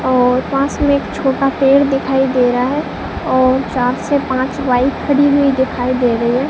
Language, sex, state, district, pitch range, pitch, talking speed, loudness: Hindi, female, Rajasthan, Bikaner, 250-275 Hz, 265 Hz, 195 wpm, -15 LUFS